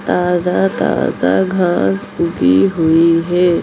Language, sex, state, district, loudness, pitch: Hindi, female, Bihar, Jamui, -14 LUFS, 165 Hz